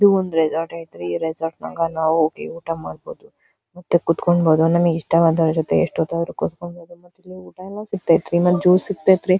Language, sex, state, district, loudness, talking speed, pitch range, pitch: Kannada, female, Karnataka, Dharwad, -19 LUFS, 165 wpm, 165-185 Hz, 170 Hz